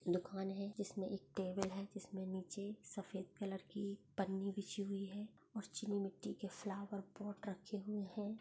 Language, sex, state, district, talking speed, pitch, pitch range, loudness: Hindi, female, Maharashtra, Pune, 170 wpm, 200 Hz, 195-205 Hz, -46 LUFS